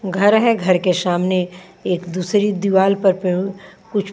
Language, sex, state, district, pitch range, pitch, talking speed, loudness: Hindi, female, Bihar, Patna, 180-200 Hz, 190 Hz, 160 wpm, -18 LUFS